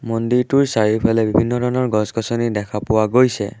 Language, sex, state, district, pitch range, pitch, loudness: Assamese, male, Assam, Sonitpur, 110-125 Hz, 115 Hz, -18 LUFS